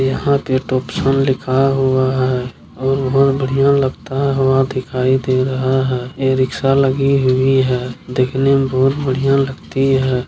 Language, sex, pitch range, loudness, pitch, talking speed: Maithili, male, 130-135 Hz, -16 LUFS, 130 Hz, 150 wpm